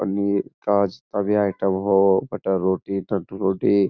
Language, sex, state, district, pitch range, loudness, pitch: Hindi, male, Uttar Pradesh, Etah, 95-100 Hz, -22 LUFS, 100 Hz